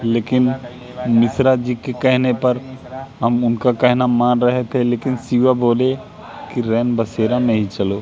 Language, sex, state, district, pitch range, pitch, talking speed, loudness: Hindi, male, Madhya Pradesh, Katni, 120-130 Hz, 125 Hz, 140 wpm, -17 LUFS